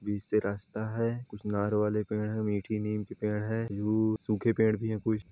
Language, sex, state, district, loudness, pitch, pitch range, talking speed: Hindi, male, Jharkhand, Sahebganj, -31 LUFS, 105 Hz, 105-110 Hz, 225 wpm